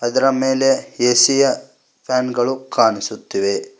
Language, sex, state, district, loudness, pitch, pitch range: Kannada, male, Karnataka, Koppal, -17 LUFS, 130 Hz, 125-140 Hz